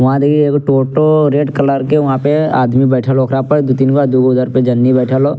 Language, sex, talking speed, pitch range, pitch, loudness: Angika, male, 255 wpm, 130-145 Hz, 135 Hz, -12 LUFS